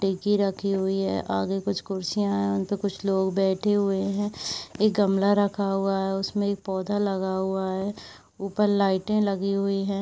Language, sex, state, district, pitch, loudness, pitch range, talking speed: Hindi, female, Chhattisgarh, Raigarh, 195 Hz, -25 LUFS, 190-200 Hz, 180 wpm